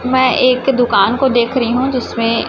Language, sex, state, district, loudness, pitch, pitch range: Hindi, female, Chhattisgarh, Raipur, -14 LUFS, 250 Hz, 235-260 Hz